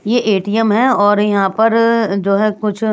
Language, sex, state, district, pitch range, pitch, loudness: Hindi, female, Bihar, Patna, 205-225 Hz, 215 Hz, -14 LUFS